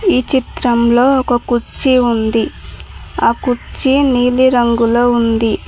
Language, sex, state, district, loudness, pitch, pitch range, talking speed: Telugu, female, Telangana, Mahabubabad, -13 LUFS, 245 Hz, 235-260 Hz, 95 wpm